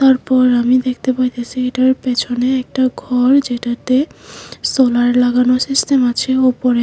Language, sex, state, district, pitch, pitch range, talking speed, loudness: Bengali, female, Tripura, West Tripura, 255 Hz, 245-260 Hz, 125 wpm, -15 LUFS